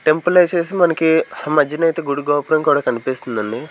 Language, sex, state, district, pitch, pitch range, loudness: Telugu, male, Andhra Pradesh, Sri Satya Sai, 155 Hz, 140-165 Hz, -17 LUFS